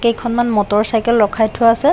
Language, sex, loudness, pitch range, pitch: Assamese, female, -15 LUFS, 215-235 Hz, 230 Hz